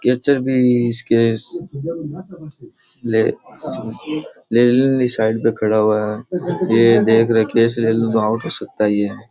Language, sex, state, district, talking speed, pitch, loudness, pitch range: Rajasthani, male, Rajasthan, Churu, 150 wpm, 115 Hz, -17 LUFS, 110-135 Hz